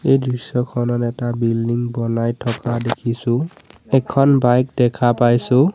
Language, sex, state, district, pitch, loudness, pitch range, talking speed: Assamese, male, Assam, Sonitpur, 120 Hz, -18 LUFS, 120-125 Hz, 115 wpm